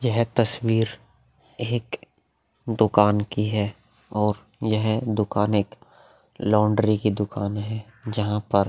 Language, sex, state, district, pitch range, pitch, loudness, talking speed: Hindi, male, Uttar Pradesh, Hamirpur, 105-115 Hz, 110 Hz, -24 LUFS, 115 wpm